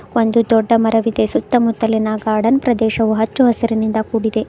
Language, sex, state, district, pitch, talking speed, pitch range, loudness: Kannada, female, Karnataka, Bidar, 225 Hz, 120 wpm, 220-230 Hz, -16 LUFS